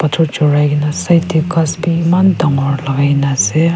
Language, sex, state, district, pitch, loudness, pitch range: Nagamese, female, Nagaland, Kohima, 155 Hz, -13 LUFS, 140-170 Hz